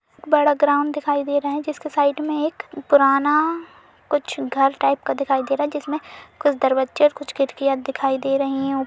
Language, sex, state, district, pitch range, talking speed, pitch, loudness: Hindi, female, Uttar Pradesh, Budaun, 275-295 Hz, 210 wpm, 285 Hz, -20 LUFS